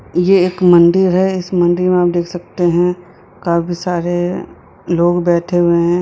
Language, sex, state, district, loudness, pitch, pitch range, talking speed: Hindi, male, Bihar, Madhepura, -14 LUFS, 175 Hz, 175-180 Hz, 170 wpm